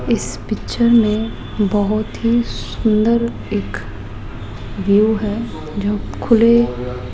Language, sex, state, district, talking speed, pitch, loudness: Hindi, female, Rajasthan, Jaipur, 100 wpm, 210 Hz, -17 LUFS